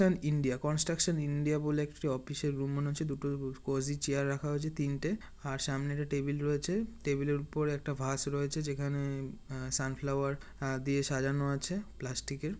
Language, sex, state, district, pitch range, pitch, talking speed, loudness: Bengali, male, West Bengal, North 24 Parganas, 140-150 Hz, 140 Hz, 175 wpm, -34 LUFS